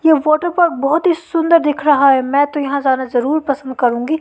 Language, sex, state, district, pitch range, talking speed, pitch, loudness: Hindi, female, Madhya Pradesh, Katni, 270-320 Hz, 215 wpm, 295 Hz, -15 LUFS